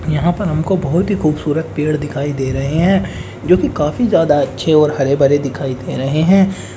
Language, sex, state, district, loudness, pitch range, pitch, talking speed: Hindi, male, Uttar Pradesh, Muzaffarnagar, -15 LUFS, 140-170 Hz, 150 Hz, 185 wpm